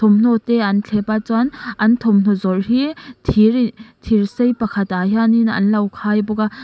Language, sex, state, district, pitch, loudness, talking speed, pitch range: Mizo, female, Mizoram, Aizawl, 220 Hz, -17 LUFS, 180 wpm, 205-235 Hz